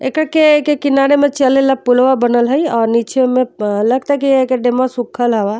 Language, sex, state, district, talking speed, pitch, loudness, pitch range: Bhojpuri, female, Uttar Pradesh, Deoria, 225 wpm, 255 Hz, -13 LUFS, 240-275 Hz